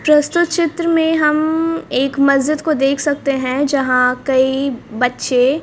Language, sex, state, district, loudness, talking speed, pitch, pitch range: Hindi, female, Haryana, Rohtak, -16 LUFS, 140 wpm, 280 Hz, 265-315 Hz